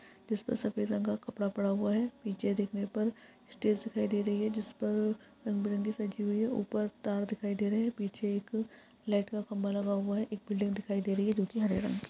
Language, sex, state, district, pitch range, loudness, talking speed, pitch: Hindi, female, Chhattisgarh, Sukma, 205-220 Hz, -34 LUFS, 245 wpm, 210 Hz